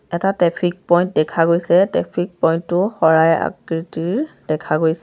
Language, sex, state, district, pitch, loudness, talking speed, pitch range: Assamese, female, Assam, Sonitpur, 170 Hz, -18 LUFS, 130 wpm, 165-180 Hz